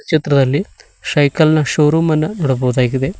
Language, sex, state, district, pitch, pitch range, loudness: Kannada, male, Karnataka, Koppal, 145 Hz, 135-155 Hz, -15 LUFS